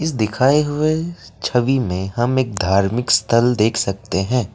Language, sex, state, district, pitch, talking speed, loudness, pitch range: Hindi, male, Assam, Kamrup Metropolitan, 120 Hz, 145 wpm, -18 LUFS, 105-135 Hz